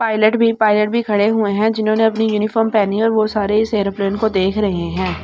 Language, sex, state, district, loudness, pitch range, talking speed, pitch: Hindi, female, Delhi, New Delhi, -16 LUFS, 205-220 Hz, 240 wpm, 215 Hz